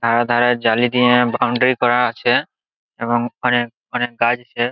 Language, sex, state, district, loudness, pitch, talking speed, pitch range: Bengali, male, West Bengal, Jalpaiguri, -17 LUFS, 120 Hz, 155 wpm, 120-125 Hz